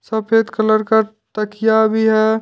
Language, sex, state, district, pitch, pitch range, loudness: Hindi, male, Jharkhand, Deoghar, 220 Hz, 215-220 Hz, -16 LUFS